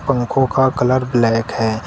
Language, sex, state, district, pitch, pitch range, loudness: Hindi, male, Uttar Pradesh, Shamli, 125 Hz, 115-130 Hz, -16 LUFS